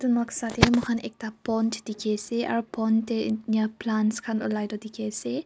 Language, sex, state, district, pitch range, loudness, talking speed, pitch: Nagamese, female, Nagaland, Kohima, 215-235 Hz, -27 LUFS, 185 wpm, 220 Hz